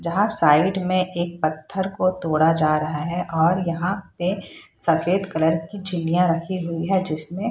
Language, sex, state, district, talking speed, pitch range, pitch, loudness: Hindi, female, Bihar, Purnia, 175 wpm, 160-185 Hz, 175 Hz, -20 LUFS